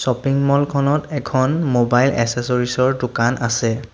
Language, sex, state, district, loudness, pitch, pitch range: Assamese, male, Assam, Sonitpur, -18 LUFS, 125 Hz, 120-140 Hz